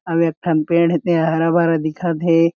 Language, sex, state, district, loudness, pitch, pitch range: Chhattisgarhi, male, Chhattisgarh, Jashpur, -17 LUFS, 165 Hz, 165-170 Hz